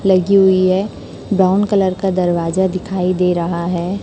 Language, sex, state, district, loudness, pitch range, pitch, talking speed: Hindi, female, Chhattisgarh, Raipur, -15 LUFS, 180-195 Hz, 185 Hz, 165 wpm